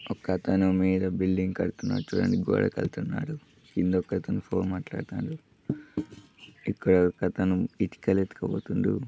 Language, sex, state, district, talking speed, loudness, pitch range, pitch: Telugu, male, Telangana, Nalgonda, 100 wpm, -28 LUFS, 90-95 Hz, 95 Hz